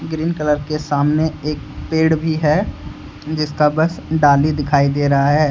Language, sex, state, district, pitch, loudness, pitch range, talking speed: Hindi, male, Jharkhand, Deoghar, 150 Hz, -17 LUFS, 145-155 Hz, 165 wpm